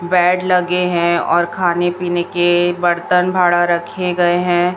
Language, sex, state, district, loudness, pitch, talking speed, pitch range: Hindi, female, Chhattisgarh, Raipur, -15 LUFS, 175 Hz, 150 wpm, 175-180 Hz